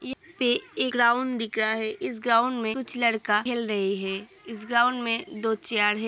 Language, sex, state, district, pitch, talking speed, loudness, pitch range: Hindi, female, Uttar Pradesh, Hamirpur, 230 Hz, 225 wpm, -25 LUFS, 215-245 Hz